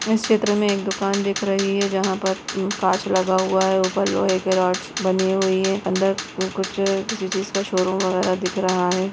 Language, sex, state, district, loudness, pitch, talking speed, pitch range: Hindi, female, Chhattisgarh, Bastar, -21 LUFS, 190 Hz, 205 wpm, 185-195 Hz